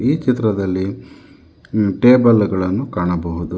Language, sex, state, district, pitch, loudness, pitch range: Kannada, male, Karnataka, Bangalore, 100 Hz, -16 LUFS, 95-125 Hz